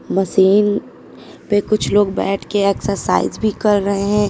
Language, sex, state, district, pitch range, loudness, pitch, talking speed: Hindi, female, Uttar Pradesh, Lucknow, 200-210 Hz, -17 LUFS, 205 Hz, 155 wpm